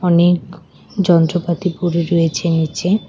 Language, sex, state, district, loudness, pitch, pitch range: Bengali, female, West Bengal, Cooch Behar, -16 LUFS, 170 Hz, 165-175 Hz